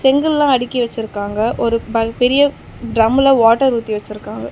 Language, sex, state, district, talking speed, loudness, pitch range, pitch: Tamil, female, Tamil Nadu, Chennai, 130 wpm, -15 LUFS, 225-265 Hz, 230 Hz